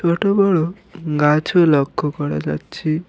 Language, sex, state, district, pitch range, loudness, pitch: Bengali, male, West Bengal, Alipurduar, 150-180 Hz, -18 LUFS, 160 Hz